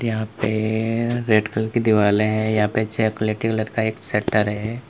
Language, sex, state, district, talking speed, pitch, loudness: Hindi, male, Uttar Pradesh, Lalitpur, 185 wpm, 110 Hz, -21 LUFS